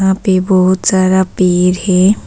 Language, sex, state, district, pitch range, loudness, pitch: Hindi, female, Arunachal Pradesh, Papum Pare, 185-190 Hz, -12 LUFS, 185 Hz